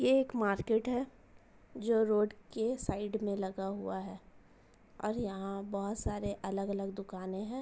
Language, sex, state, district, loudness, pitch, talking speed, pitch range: Hindi, female, Jharkhand, Jamtara, -35 LUFS, 205 Hz, 150 wpm, 195-225 Hz